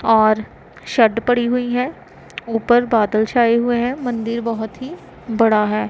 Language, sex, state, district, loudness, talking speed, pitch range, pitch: Hindi, female, Punjab, Pathankot, -18 LUFS, 150 wpm, 220-245 Hz, 230 Hz